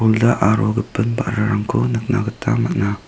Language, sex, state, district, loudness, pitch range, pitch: Garo, male, Meghalaya, South Garo Hills, -18 LUFS, 105-120 Hz, 110 Hz